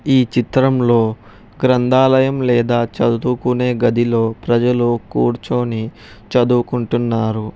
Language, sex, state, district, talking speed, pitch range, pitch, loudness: Telugu, male, Telangana, Hyderabad, 70 wpm, 115-125 Hz, 120 Hz, -16 LUFS